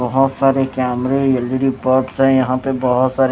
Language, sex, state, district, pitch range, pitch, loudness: Hindi, male, Chhattisgarh, Raipur, 130-135 Hz, 130 Hz, -16 LUFS